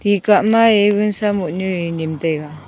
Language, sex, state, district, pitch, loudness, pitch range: Wancho, female, Arunachal Pradesh, Longding, 195 Hz, -16 LUFS, 165-210 Hz